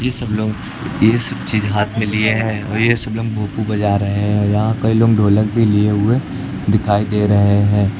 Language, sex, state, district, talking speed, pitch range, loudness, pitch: Hindi, male, Uttar Pradesh, Lucknow, 220 wpm, 105-110 Hz, -16 LUFS, 105 Hz